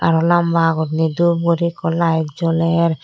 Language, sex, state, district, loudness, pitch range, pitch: Chakma, female, Tripura, Dhalai, -17 LUFS, 160-170 Hz, 165 Hz